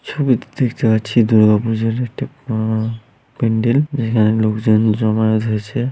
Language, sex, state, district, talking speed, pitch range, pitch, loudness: Bengali, male, West Bengal, Malda, 140 wpm, 110-125 Hz, 115 Hz, -17 LUFS